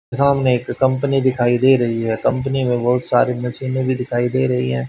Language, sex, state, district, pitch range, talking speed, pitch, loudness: Hindi, male, Haryana, Charkhi Dadri, 120-130 Hz, 210 wpm, 125 Hz, -18 LUFS